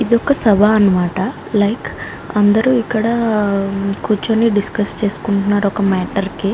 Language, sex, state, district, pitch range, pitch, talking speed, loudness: Telugu, female, Andhra Pradesh, Guntur, 200-225 Hz, 205 Hz, 130 wpm, -15 LUFS